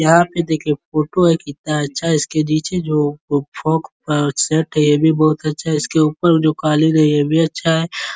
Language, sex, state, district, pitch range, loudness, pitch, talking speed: Hindi, male, Uttar Pradesh, Ghazipur, 150-160 Hz, -17 LUFS, 155 Hz, 190 wpm